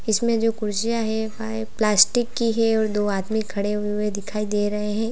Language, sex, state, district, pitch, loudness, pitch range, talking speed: Hindi, female, Uttar Pradesh, Lalitpur, 220 Hz, -22 LUFS, 210-225 Hz, 200 wpm